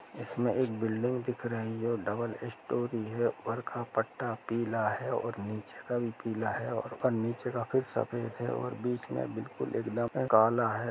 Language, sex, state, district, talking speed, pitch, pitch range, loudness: Hindi, male, Jharkhand, Jamtara, 175 wpm, 120 Hz, 115-120 Hz, -33 LUFS